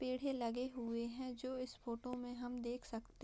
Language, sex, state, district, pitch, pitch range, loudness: Hindi, female, Bihar, Madhepura, 245 Hz, 235-255 Hz, -44 LUFS